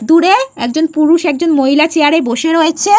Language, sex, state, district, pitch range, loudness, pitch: Bengali, female, Jharkhand, Jamtara, 300-330 Hz, -11 LUFS, 320 Hz